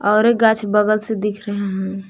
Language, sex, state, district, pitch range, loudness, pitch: Hindi, female, Jharkhand, Palamu, 200-215 Hz, -18 LUFS, 210 Hz